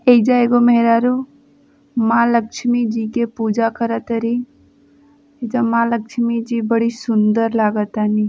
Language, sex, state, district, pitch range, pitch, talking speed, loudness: Bhojpuri, female, Uttar Pradesh, Gorakhpur, 230-245 Hz, 235 Hz, 115 wpm, -17 LUFS